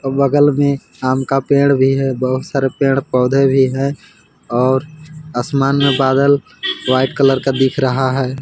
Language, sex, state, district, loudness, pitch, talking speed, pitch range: Hindi, male, Jharkhand, Palamu, -15 LUFS, 135 Hz, 165 wpm, 130-140 Hz